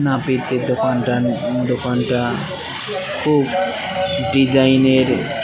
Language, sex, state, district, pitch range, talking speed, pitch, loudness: Bengali, male, West Bengal, Cooch Behar, 125-135 Hz, 65 wpm, 130 Hz, -18 LUFS